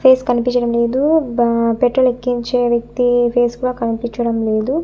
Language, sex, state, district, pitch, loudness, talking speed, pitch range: Telugu, female, Andhra Pradesh, Annamaya, 245 Hz, -16 LUFS, 135 wpm, 235-250 Hz